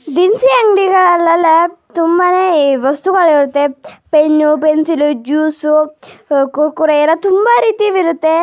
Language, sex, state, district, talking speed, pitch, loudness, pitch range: Kannada, female, Karnataka, Shimoga, 100 wpm, 320 Hz, -12 LUFS, 300-360 Hz